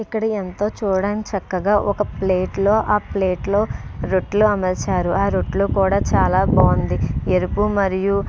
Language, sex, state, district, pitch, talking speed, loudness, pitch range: Telugu, female, Andhra Pradesh, Srikakulam, 200 Hz, 145 wpm, -19 LUFS, 190-210 Hz